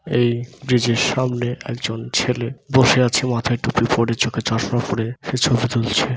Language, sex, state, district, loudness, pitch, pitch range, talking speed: Bengali, male, West Bengal, Dakshin Dinajpur, -19 LUFS, 120 Hz, 115-130 Hz, 185 wpm